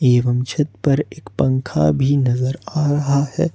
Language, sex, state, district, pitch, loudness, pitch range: Hindi, male, Jharkhand, Ranchi, 140 Hz, -18 LUFS, 125-150 Hz